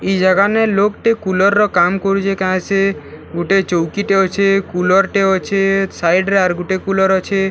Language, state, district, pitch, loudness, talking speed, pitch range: Sambalpuri, Odisha, Sambalpur, 195 Hz, -15 LUFS, 200 wpm, 185-195 Hz